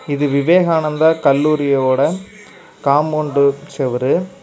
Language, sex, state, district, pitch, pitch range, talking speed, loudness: Tamil, male, Tamil Nadu, Kanyakumari, 150 Hz, 140-165 Hz, 70 wpm, -15 LUFS